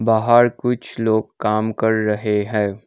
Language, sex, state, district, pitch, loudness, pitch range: Hindi, male, Sikkim, Gangtok, 110 Hz, -18 LUFS, 105-115 Hz